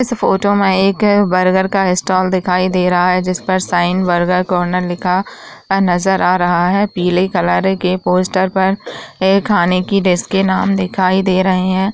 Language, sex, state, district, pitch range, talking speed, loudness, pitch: Hindi, female, Uttar Pradesh, Varanasi, 180-195 Hz, 180 wpm, -14 LUFS, 185 Hz